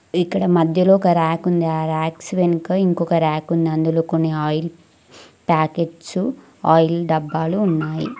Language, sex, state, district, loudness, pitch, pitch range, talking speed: Telugu, female, Telangana, Mahabubabad, -19 LUFS, 165 Hz, 160-175 Hz, 115 wpm